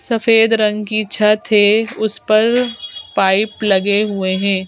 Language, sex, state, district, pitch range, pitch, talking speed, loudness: Hindi, female, Madhya Pradesh, Bhopal, 200-220 Hz, 215 Hz, 140 wpm, -15 LUFS